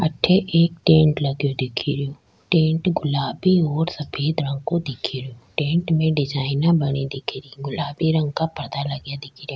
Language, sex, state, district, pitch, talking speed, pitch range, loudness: Rajasthani, female, Rajasthan, Churu, 145 Hz, 170 wpm, 140-160 Hz, -21 LUFS